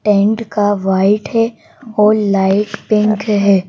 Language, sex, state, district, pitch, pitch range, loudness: Hindi, female, Madhya Pradesh, Bhopal, 210 Hz, 200-215 Hz, -14 LUFS